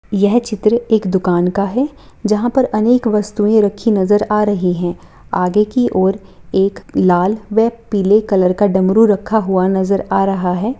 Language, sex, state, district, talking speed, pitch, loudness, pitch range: Hindi, female, Bihar, Samastipur, 170 wpm, 205 Hz, -15 LUFS, 190-220 Hz